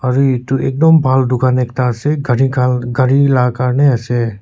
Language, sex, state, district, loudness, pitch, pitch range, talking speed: Nagamese, male, Nagaland, Kohima, -13 LUFS, 130 Hz, 125-135 Hz, 150 wpm